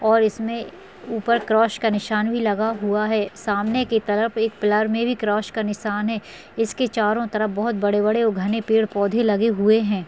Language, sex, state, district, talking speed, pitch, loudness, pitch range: Hindi, female, Chhattisgarh, Sukma, 185 wpm, 220 Hz, -21 LUFS, 210-225 Hz